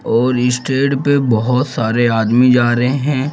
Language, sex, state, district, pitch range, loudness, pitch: Hindi, male, Bihar, Jamui, 120-135 Hz, -14 LUFS, 125 Hz